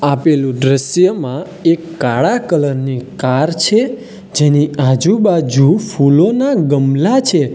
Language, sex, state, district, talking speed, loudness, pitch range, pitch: Gujarati, male, Gujarat, Valsad, 105 wpm, -13 LUFS, 135-185 Hz, 150 Hz